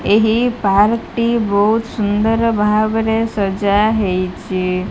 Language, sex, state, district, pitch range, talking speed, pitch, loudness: Odia, female, Odisha, Malkangiri, 200-225 Hz, 85 wpm, 215 Hz, -16 LUFS